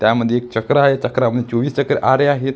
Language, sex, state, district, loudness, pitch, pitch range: Marathi, male, Maharashtra, Gondia, -16 LUFS, 130 Hz, 120-140 Hz